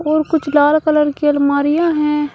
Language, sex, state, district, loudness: Hindi, female, Uttar Pradesh, Shamli, -15 LUFS